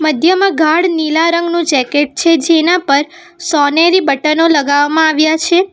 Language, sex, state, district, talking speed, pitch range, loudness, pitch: Gujarati, female, Gujarat, Valsad, 135 wpm, 295-340 Hz, -11 LUFS, 320 Hz